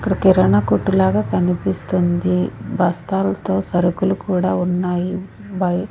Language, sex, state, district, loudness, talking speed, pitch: Telugu, female, Andhra Pradesh, Sri Satya Sai, -18 LUFS, 90 wpm, 140 Hz